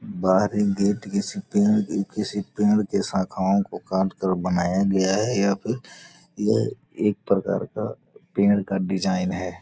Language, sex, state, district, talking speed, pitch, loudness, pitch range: Hindi, male, Bihar, Gopalganj, 145 wpm, 100 Hz, -23 LUFS, 95-105 Hz